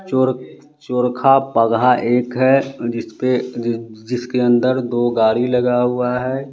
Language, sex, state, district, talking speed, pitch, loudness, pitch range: Hindi, male, Bihar, West Champaran, 130 wpm, 125 Hz, -17 LUFS, 120-130 Hz